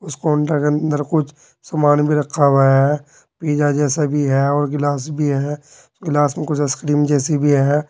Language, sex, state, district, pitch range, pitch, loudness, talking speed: Hindi, male, Uttar Pradesh, Saharanpur, 145-150 Hz, 145 Hz, -17 LUFS, 190 wpm